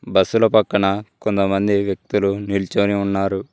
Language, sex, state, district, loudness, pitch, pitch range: Telugu, male, Telangana, Mahabubabad, -19 LUFS, 100 Hz, 100-105 Hz